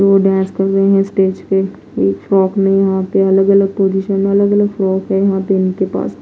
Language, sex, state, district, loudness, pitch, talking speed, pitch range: Hindi, female, Odisha, Nuapada, -14 LUFS, 195 Hz, 220 wpm, 190-195 Hz